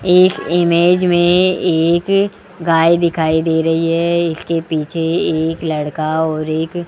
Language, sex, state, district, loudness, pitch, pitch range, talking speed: Hindi, male, Rajasthan, Jaipur, -15 LUFS, 165 Hz, 160-175 Hz, 140 wpm